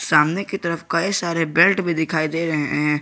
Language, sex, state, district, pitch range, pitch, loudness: Hindi, male, Jharkhand, Garhwa, 155-175 Hz, 165 Hz, -20 LUFS